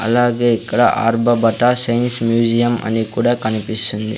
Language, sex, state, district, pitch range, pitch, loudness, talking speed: Telugu, male, Andhra Pradesh, Sri Satya Sai, 110-120 Hz, 115 Hz, -16 LUFS, 115 wpm